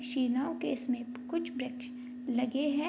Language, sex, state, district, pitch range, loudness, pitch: Hindi, female, Bihar, Madhepura, 250-285 Hz, -35 LUFS, 255 Hz